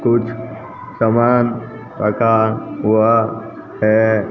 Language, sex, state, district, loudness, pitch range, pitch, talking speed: Hindi, male, Haryana, Jhajjar, -16 LUFS, 110-115 Hz, 115 Hz, 70 wpm